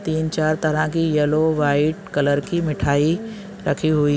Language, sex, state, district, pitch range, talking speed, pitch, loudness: Hindi, male, Chhattisgarh, Balrampur, 145-160 Hz, 160 wpm, 155 Hz, -20 LUFS